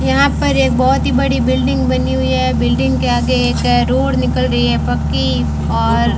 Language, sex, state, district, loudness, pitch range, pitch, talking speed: Hindi, female, Rajasthan, Bikaner, -14 LUFS, 75-85 Hz, 80 Hz, 205 wpm